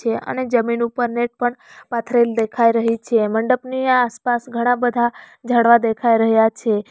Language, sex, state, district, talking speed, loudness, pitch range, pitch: Gujarati, female, Gujarat, Valsad, 145 wpm, -18 LUFS, 230-245 Hz, 235 Hz